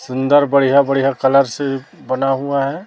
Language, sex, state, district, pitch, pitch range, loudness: Hindi, male, Chhattisgarh, Raipur, 135 Hz, 135-140 Hz, -15 LUFS